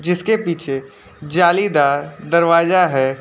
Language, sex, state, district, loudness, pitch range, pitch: Hindi, male, Uttar Pradesh, Lucknow, -16 LUFS, 140-180 Hz, 170 Hz